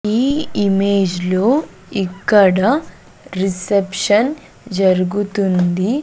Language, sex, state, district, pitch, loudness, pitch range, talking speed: Telugu, female, Andhra Pradesh, Sri Satya Sai, 200 Hz, -16 LUFS, 190-225 Hz, 60 wpm